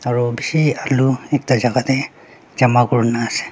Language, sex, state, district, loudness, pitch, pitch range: Nagamese, male, Nagaland, Dimapur, -17 LUFS, 130 Hz, 120-140 Hz